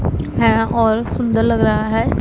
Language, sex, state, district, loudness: Hindi, female, Punjab, Pathankot, -16 LUFS